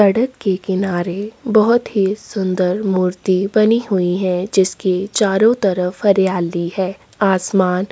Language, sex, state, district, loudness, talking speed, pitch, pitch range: Hindi, female, Chhattisgarh, Sukma, -17 LUFS, 120 wpm, 195 Hz, 185-210 Hz